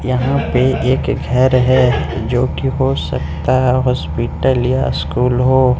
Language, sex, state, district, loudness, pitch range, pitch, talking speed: Hindi, male, Arunachal Pradesh, Lower Dibang Valley, -15 LUFS, 110-130 Hz, 125 Hz, 145 wpm